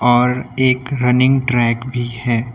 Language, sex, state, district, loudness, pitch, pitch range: Hindi, male, Uttar Pradesh, Lucknow, -16 LUFS, 125 Hz, 120-130 Hz